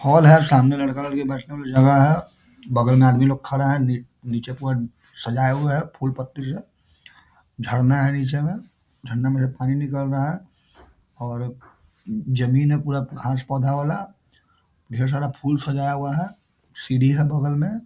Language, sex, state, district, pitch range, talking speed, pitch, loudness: Hindi, male, Bihar, Muzaffarpur, 130-145 Hz, 175 wpm, 135 Hz, -21 LUFS